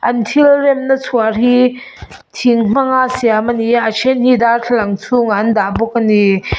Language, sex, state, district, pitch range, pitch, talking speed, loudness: Mizo, female, Mizoram, Aizawl, 220-255 Hz, 240 Hz, 165 wpm, -13 LUFS